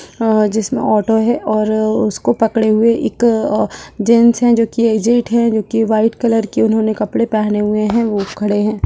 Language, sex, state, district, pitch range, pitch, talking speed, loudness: Hindi, female, Bihar, Purnia, 215-230 Hz, 220 Hz, 190 wpm, -14 LUFS